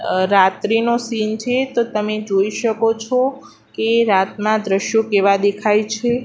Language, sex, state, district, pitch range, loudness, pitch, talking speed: Gujarati, female, Gujarat, Gandhinagar, 200-235 Hz, -17 LUFS, 220 Hz, 145 wpm